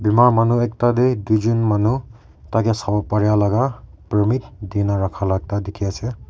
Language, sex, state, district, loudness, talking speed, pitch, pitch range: Nagamese, male, Nagaland, Kohima, -19 LUFS, 135 wpm, 105 Hz, 100-115 Hz